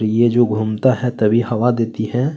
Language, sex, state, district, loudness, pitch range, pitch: Hindi, male, Chhattisgarh, Kabirdham, -17 LUFS, 110-125 Hz, 120 Hz